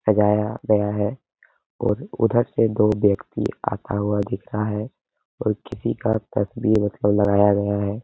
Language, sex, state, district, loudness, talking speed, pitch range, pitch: Hindi, male, Uttar Pradesh, Hamirpur, -22 LUFS, 150 wpm, 105-110 Hz, 105 Hz